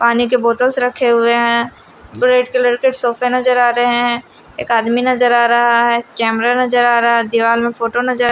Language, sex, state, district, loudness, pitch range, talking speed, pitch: Hindi, female, Bihar, Kaimur, -14 LUFS, 235-250 Hz, 210 wpm, 240 Hz